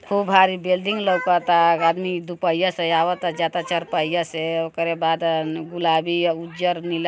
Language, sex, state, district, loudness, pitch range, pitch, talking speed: Bhojpuri, female, Uttar Pradesh, Gorakhpur, -21 LUFS, 165-180 Hz, 170 Hz, 150 wpm